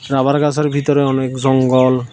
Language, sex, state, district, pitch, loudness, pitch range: Bengali, male, Tripura, South Tripura, 135 Hz, -15 LUFS, 130-145 Hz